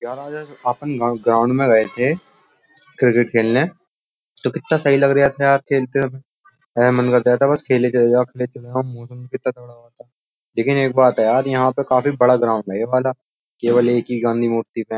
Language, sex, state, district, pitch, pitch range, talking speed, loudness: Hindi, male, Uttar Pradesh, Jyotiba Phule Nagar, 125 Hz, 120-140 Hz, 200 wpm, -18 LUFS